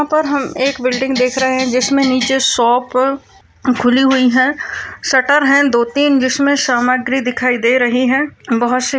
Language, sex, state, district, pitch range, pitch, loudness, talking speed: Hindi, female, Maharashtra, Chandrapur, 250-275 Hz, 260 Hz, -14 LUFS, 175 wpm